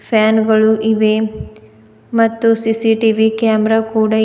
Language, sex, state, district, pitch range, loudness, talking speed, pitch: Kannada, female, Karnataka, Bidar, 215-225 Hz, -14 LUFS, 85 wpm, 220 Hz